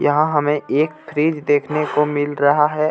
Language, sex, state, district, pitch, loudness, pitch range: Hindi, male, Jharkhand, Ranchi, 150 Hz, -18 LUFS, 145-155 Hz